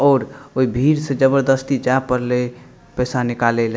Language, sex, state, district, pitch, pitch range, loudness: Maithili, male, Bihar, Madhepura, 130 Hz, 125-135 Hz, -18 LUFS